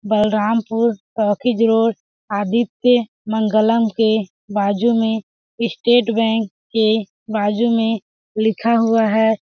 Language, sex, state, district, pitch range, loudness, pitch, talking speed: Hindi, female, Chhattisgarh, Balrampur, 215-230 Hz, -18 LUFS, 220 Hz, 95 wpm